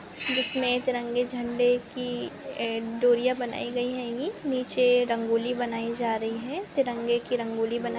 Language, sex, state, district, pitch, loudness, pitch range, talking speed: Hindi, female, Chhattisgarh, Korba, 245 Hz, -27 LUFS, 235-250 Hz, 160 wpm